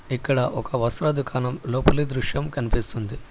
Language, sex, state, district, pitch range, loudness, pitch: Telugu, male, Telangana, Hyderabad, 120-140 Hz, -24 LUFS, 130 Hz